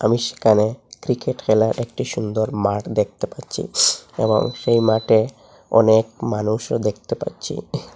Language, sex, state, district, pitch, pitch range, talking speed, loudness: Bengali, male, Assam, Hailakandi, 110 Hz, 105-115 Hz, 120 wpm, -20 LUFS